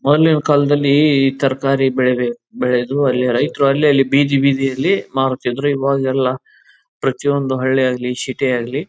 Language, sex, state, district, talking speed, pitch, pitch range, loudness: Kannada, male, Karnataka, Chamarajanagar, 135 wpm, 135 Hz, 130-140 Hz, -16 LUFS